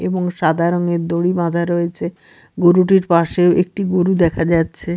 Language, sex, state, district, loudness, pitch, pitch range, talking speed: Bengali, female, Bihar, Katihar, -16 LUFS, 175 Hz, 170-180 Hz, 145 wpm